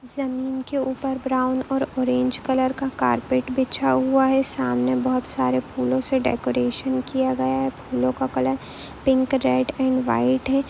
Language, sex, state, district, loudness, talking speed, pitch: Hindi, female, Jharkhand, Jamtara, -22 LUFS, 170 wpm, 255 Hz